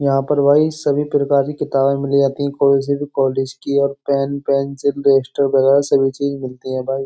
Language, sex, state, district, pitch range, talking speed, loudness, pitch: Hindi, male, Uttar Pradesh, Jyotiba Phule Nagar, 135-140 Hz, 205 wpm, -17 LUFS, 140 Hz